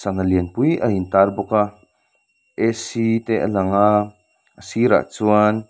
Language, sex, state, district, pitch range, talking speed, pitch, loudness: Mizo, male, Mizoram, Aizawl, 95-110 Hz, 180 wpm, 105 Hz, -19 LUFS